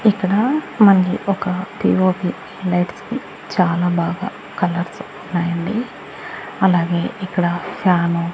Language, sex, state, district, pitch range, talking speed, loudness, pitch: Telugu, female, Andhra Pradesh, Annamaya, 175-195 Hz, 100 wpm, -19 LUFS, 185 Hz